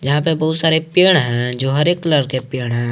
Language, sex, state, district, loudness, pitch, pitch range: Hindi, male, Jharkhand, Garhwa, -16 LUFS, 145 Hz, 130-160 Hz